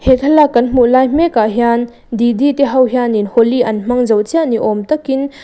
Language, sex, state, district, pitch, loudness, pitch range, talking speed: Mizo, female, Mizoram, Aizawl, 245 Hz, -13 LUFS, 235-280 Hz, 230 wpm